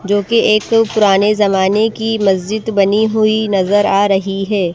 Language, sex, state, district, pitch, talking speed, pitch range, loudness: Hindi, female, Madhya Pradesh, Bhopal, 205 Hz, 165 wpm, 195-220 Hz, -13 LUFS